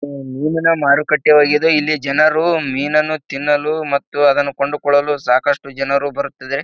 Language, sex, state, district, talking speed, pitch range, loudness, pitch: Kannada, male, Karnataka, Bijapur, 125 wpm, 140-155 Hz, -16 LUFS, 145 Hz